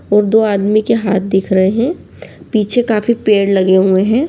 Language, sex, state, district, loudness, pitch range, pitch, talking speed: Hindi, female, Bihar, Gaya, -13 LUFS, 195-230 Hz, 210 Hz, 195 wpm